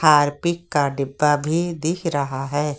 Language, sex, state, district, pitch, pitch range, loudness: Hindi, male, Uttar Pradesh, Lucknow, 150 Hz, 145-165 Hz, -21 LUFS